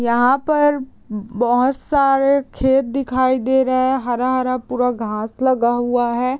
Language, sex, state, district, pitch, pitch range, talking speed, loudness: Hindi, female, Bihar, Muzaffarpur, 255 Hz, 240-265 Hz, 140 wpm, -18 LUFS